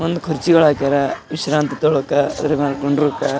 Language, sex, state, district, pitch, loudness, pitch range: Kannada, male, Karnataka, Gulbarga, 150 Hz, -17 LUFS, 140-155 Hz